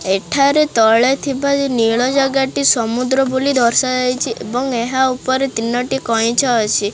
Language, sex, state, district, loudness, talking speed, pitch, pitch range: Odia, male, Odisha, Khordha, -15 LUFS, 145 wpm, 255 Hz, 230-270 Hz